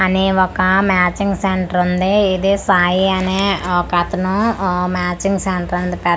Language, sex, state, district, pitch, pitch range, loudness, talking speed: Telugu, female, Andhra Pradesh, Manyam, 185 Hz, 180-195 Hz, -16 LUFS, 125 wpm